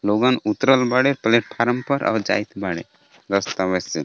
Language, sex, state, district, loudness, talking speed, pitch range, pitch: Bhojpuri, male, Jharkhand, Palamu, -20 LUFS, 150 wpm, 100-125 Hz, 115 Hz